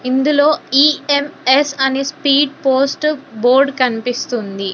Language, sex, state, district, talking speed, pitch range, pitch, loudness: Telugu, female, Telangana, Hyderabad, 90 wpm, 255-290 Hz, 275 Hz, -15 LUFS